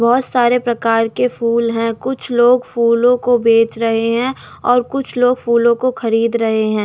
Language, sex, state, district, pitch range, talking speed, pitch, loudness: Hindi, female, Delhi, New Delhi, 230-250 Hz, 185 wpm, 235 Hz, -15 LUFS